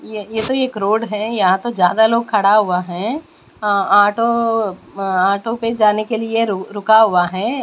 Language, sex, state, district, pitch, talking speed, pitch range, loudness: Hindi, female, Bihar, West Champaran, 215 Hz, 190 wpm, 200-230 Hz, -16 LUFS